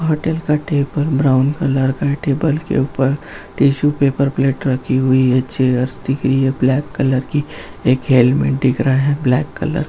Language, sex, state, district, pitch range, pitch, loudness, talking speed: Hindi, male, Bihar, Gaya, 130-145 Hz, 135 Hz, -16 LUFS, 145 wpm